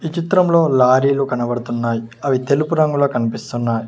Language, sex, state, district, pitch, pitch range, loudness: Telugu, male, Telangana, Mahabubabad, 130 Hz, 120-150 Hz, -17 LUFS